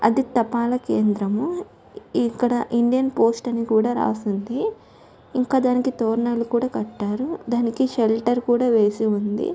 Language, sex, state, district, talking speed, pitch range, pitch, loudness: Telugu, female, Andhra Pradesh, Chittoor, 125 wpm, 225-250 Hz, 235 Hz, -22 LUFS